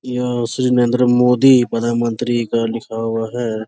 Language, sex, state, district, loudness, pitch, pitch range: Hindi, male, Jharkhand, Sahebganj, -16 LUFS, 120 Hz, 115-125 Hz